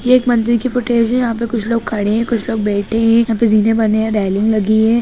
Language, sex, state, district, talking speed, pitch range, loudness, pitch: Hindi, female, Bihar, Jahanabad, 285 wpm, 215-235 Hz, -15 LUFS, 225 Hz